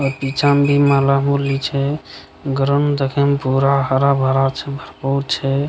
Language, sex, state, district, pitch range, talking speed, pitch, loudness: Maithili, male, Bihar, Begusarai, 135-140 Hz, 150 wpm, 140 Hz, -17 LUFS